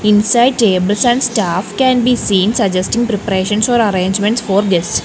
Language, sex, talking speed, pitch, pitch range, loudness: English, female, 155 wpm, 210 Hz, 195-240 Hz, -13 LUFS